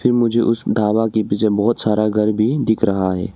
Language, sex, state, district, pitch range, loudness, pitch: Hindi, male, Arunachal Pradesh, Longding, 105-115 Hz, -17 LUFS, 110 Hz